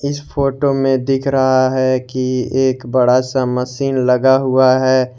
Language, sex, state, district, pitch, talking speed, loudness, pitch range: Hindi, male, Jharkhand, Garhwa, 130 Hz, 175 wpm, -15 LUFS, 130-135 Hz